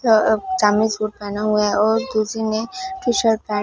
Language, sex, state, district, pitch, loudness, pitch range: Hindi, female, Punjab, Fazilka, 220 Hz, -19 LUFS, 210-225 Hz